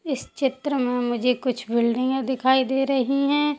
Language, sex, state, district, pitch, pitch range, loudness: Hindi, female, Chhattisgarh, Sukma, 260 Hz, 250-275 Hz, -23 LUFS